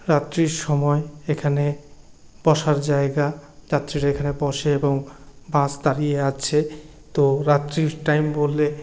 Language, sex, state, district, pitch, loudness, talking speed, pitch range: Bengali, male, West Bengal, Paschim Medinipur, 145 Hz, -22 LUFS, 110 wpm, 145-150 Hz